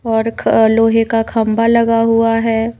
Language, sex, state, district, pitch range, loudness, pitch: Hindi, female, Haryana, Rohtak, 225-230 Hz, -13 LUFS, 225 Hz